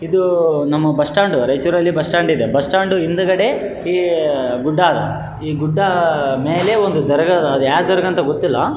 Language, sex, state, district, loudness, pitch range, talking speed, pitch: Kannada, male, Karnataka, Raichur, -16 LUFS, 150-185 Hz, 155 wpm, 165 Hz